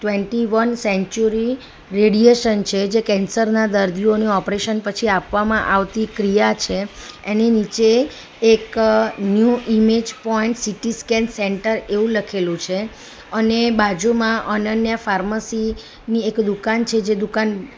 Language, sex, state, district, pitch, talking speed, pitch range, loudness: Gujarati, female, Gujarat, Valsad, 220 Hz, 130 wpm, 205-225 Hz, -18 LUFS